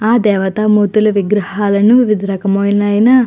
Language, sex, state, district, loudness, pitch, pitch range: Telugu, female, Andhra Pradesh, Chittoor, -12 LUFS, 205 Hz, 200-215 Hz